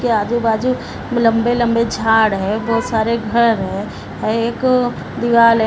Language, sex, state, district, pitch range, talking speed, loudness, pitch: Hindi, female, Bihar, Purnia, 220-240 Hz, 125 wpm, -16 LUFS, 230 Hz